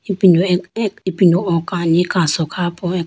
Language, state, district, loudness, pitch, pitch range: Idu Mishmi, Arunachal Pradesh, Lower Dibang Valley, -16 LUFS, 180 Hz, 170-185 Hz